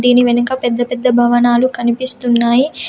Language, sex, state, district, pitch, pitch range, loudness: Telugu, female, Telangana, Komaram Bheem, 245 Hz, 240-250 Hz, -13 LUFS